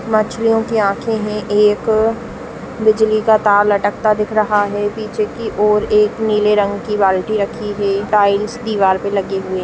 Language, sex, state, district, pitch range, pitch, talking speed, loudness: Hindi, female, Chhattisgarh, Raigarh, 205-220 Hz, 210 Hz, 175 wpm, -15 LUFS